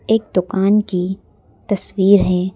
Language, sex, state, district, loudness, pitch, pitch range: Hindi, female, Madhya Pradesh, Bhopal, -17 LUFS, 195 Hz, 185-205 Hz